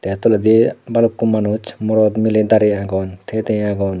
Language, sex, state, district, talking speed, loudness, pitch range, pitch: Chakma, male, Tripura, Dhalai, 165 wpm, -16 LUFS, 100-110 Hz, 110 Hz